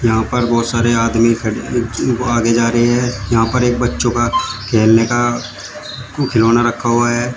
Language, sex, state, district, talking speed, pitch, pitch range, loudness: Hindi, male, Uttar Pradesh, Shamli, 170 wpm, 120 Hz, 115-120 Hz, -15 LUFS